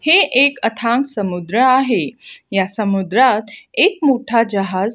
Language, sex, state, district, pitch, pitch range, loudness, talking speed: Marathi, female, Maharashtra, Gondia, 230 Hz, 200-260 Hz, -16 LUFS, 120 wpm